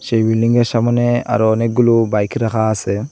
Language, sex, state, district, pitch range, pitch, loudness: Bengali, male, Assam, Hailakandi, 110-120 Hz, 115 Hz, -15 LUFS